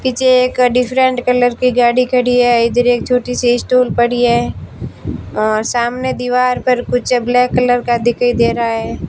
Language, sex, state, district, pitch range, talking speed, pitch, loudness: Hindi, female, Rajasthan, Barmer, 240-250 Hz, 180 wpm, 245 Hz, -14 LUFS